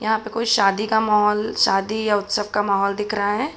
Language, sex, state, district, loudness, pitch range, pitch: Hindi, female, Uttar Pradesh, Budaun, -20 LUFS, 205-220 Hz, 210 Hz